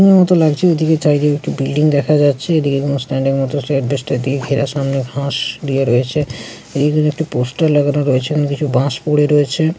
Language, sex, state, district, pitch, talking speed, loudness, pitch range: Bengali, male, West Bengal, Jalpaiguri, 145 Hz, 180 wpm, -15 LUFS, 135-150 Hz